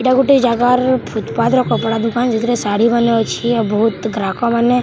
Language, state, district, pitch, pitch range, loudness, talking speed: Sambalpuri, Odisha, Sambalpur, 235 Hz, 225-245 Hz, -15 LUFS, 200 wpm